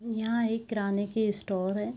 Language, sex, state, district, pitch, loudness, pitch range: Hindi, female, Bihar, Araria, 215 Hz, -29 LUFS, 205-225 Hz